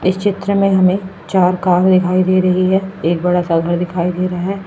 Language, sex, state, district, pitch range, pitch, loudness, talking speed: Hindi, female, Uttar Pradesh, Lalitpur, 180-190 Hz, 185 Hz, -15 LUFS, 230 wpm